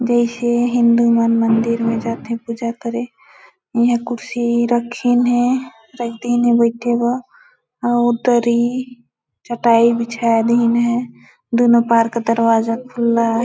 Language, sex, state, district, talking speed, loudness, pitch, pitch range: Hindi, female, Chhattisgarh, Balrampur, 110 wpm, -17 LUFS, 235 Hz, 230-240 Hz